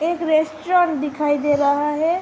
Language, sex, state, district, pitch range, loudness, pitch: Hindi, female, Uttar Pradesh, Budaun, 295-330 Hz, -19 LUFS, 310 Hz